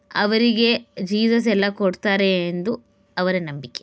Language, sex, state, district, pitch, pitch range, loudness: Kannada, female, Karnataka, Bellary, 200 Hz, 185-230 Hz, -20 LUFS